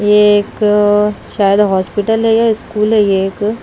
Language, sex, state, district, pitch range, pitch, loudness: Hindi, female, Himachal Pradesh, Shimla, 205-215 Hz, 210 Hz, -12 LUFS